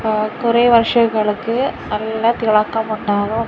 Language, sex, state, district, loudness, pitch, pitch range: Malayalam, female, Kerala, Kasaragod, -16 LUFS, 220 Hz, 215-235 Hz